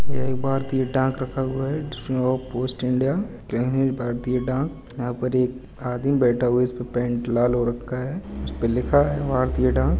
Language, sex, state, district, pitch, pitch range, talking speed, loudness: Hindi, male, Uttar Pradesh, Budaun, 130 Hz, 120-135 Hz, 190 wpm, -24 LUFS